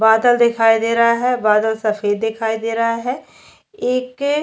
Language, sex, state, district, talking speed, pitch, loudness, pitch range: Hindi, female, Chhattisgarh, Bastar, 150 wpm, 230 Hz, -17 LUFS, 220-245 Hz